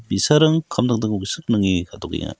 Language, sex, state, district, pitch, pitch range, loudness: Garo, male, Meghalaya, West Garo Hills, 110 Hz, 95-150 Hz, -19 LUFS